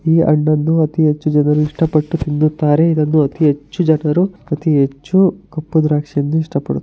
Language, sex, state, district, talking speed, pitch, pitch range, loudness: Kannada, male, Karnataka, Mysore, 160 wpm, 155 Hz, 150-160 Hz, -15 LUFS